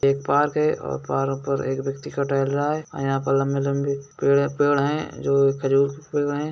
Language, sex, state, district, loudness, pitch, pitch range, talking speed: Hindi, male, Bihar, Gaya, -23 LUFS, 140 Hz, 135-145 Hz, 210 wpm